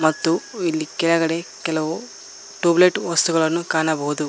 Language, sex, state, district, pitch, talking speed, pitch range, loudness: Kannada, male, Karnataka, Koppal, 165 Hz, 110 wpm, 160-175 Hz, -20 LUFS